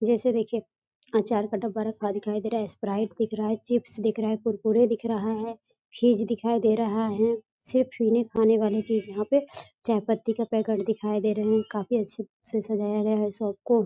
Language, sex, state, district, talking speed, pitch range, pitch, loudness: Hindi, female, Bihar, East Champaran, 205 wpm, 215-230 Hz, 220 Hz, -26 LUFS